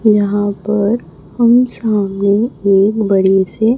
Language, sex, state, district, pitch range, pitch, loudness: Hindi, female, Chhattisgarh, Raipur, 195-220 Hz, 205 Hz, -14 LUFS